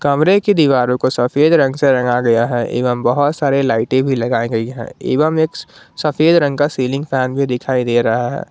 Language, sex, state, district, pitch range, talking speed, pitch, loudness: Hindi, male, Jharkhand, Garhwa, 120-145 Hz, 210 wpm, 130 Hz, -15 LUFS